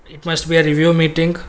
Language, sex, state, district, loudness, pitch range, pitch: English, male, Karnataka, Bangalore, -15 LUFS, 160-165 Hz, 165 Hz